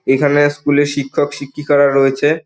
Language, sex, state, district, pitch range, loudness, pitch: Bengali, male, West Bengal, Dakshin Dinajpur, 140-145 Hz, -14 LUFS, 145 Hz